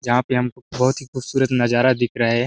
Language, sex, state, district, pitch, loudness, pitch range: Hindi, male, Chhattisgarh, Sarguja, 125 Hz, -20 LUFS, 120-130 Hz